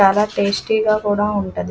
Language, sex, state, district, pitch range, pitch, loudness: Telugu, female, Andhra Pradesh, Krishna, 200-210 Hz, 205 Hz, -18 LUFS